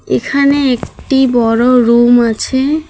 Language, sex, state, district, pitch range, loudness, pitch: Bengali, female, West Bengal, Alipurduar, 240-280 Hz, -11 LUFS, 255 Hz